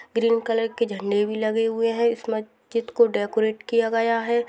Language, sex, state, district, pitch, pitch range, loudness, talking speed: Hindi, female, Rajasthan, Nagaur, 230 Hz, 220-230 Hz, -23 LUFS, 215 wpm